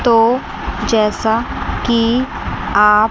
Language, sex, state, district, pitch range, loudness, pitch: Hindi, female, Chandigarh, Chandigarh, 215-235 Hz, -16 LUFS, 230 Hz